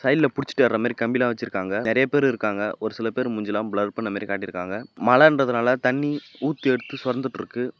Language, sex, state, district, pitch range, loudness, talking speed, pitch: Tamil, male, Tamil Nadu, Namakkal, 105-130 Hz, -23 LUFS, 175 wpm, 120 Hz